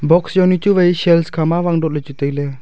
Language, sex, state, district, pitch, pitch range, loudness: Wancho, male, Arunachal Pradesh, Longding, 165 Hz, 150-175 Hz, -15 LUFS